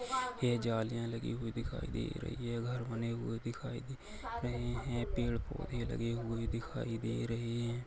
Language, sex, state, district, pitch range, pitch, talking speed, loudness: Hindi, male, Chhattisgarh, Kabirdham, 115-120 Hz, 120 Hz, 175 wpm, -39 LUFS